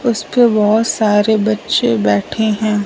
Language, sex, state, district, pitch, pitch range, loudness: Hindi, male, Punjab, Fazilka, 215 Hz, 205-220 Hz, -14 LUFS